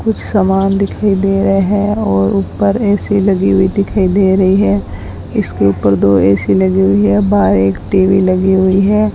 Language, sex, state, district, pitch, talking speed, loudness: Hindi, female, Rajasthan, Bikaner, 190 Hz, 185 wpm, -12 LUFS